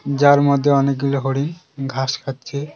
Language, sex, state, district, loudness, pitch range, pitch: Bengali, male, West Bengal, Cooch Behar, -18 LUFS, 135-145 Hz, 140 Hz